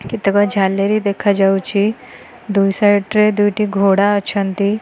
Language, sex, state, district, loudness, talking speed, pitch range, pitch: Odia, female, Odisha, Khordha, -15 LUFS, 110 wpm, 195-210 Hz, 200 Hz